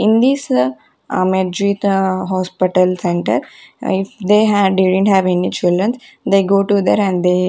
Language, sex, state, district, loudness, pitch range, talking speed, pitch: English, female, Punjab, Kapurthala, -15 LUFS, 185-200 Hz, 135 wpm, 190 Hz